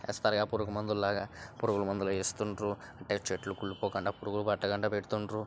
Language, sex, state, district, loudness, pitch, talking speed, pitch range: Telugu, male, Andhra Pradesh, Srikakulam, -34 LUFS, 100 Hz, 130 wpm, 100-105 Hz